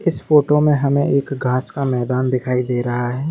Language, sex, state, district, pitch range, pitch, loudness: Hindi, male, Jharkhand, Jamtara, 125-145 Hz, 135 Hz, -18 LUFS